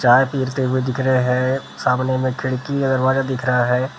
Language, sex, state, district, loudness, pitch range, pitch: Hindi, male, Maharashtra, Gondia, -19 LUFS, 125-130 Hz, 130 Hz